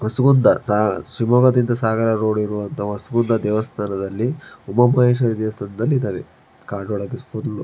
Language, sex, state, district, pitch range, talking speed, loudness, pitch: Kannada, male, Karnataka, Shimoga, 105-125 Hz, 110 wpm, -19 LUFS, 115 Hz